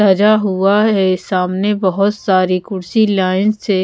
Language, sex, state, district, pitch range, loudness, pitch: Hindi, female, Bihar, Patna, 185-210 Hz, -14 LUFS, 195 Hz